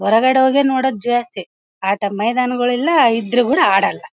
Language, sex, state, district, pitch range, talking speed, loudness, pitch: Kannada, female, Karnataka, Bellary, 225-265 Hz, 145 wpm, -16 LUFS, 245 Hz